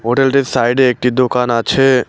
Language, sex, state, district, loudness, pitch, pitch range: Bengali, male, West Bengal, Cooch Behar, -13 LUFS, 125 Hz, 120-135 Hz